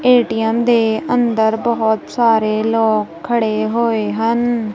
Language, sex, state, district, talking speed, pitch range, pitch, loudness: Punjabi, female, Punjab, Kapurthala, 115 wpm, 220-235 Hz, 225 Hz, -16 LUFS